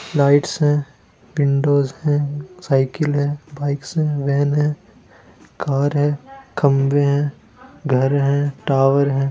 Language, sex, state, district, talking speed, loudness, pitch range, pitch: Hindi, male, Jharkhand, Sahebganj, 115 wpm, -19 LUFS, 135-145 Hz, 145 Hz